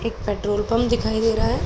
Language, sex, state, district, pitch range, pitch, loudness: Hindi, male, Bihar, Araria, 210-230 Hz, 225 Hz, -22 LUFS